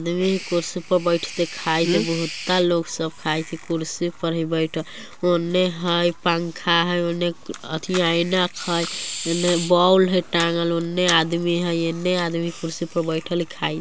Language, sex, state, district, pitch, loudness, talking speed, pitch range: Bajjika, female, Bihar, Vaishali, 170 Hz, -22 LUFS, 150 wpm, 165-175 Hz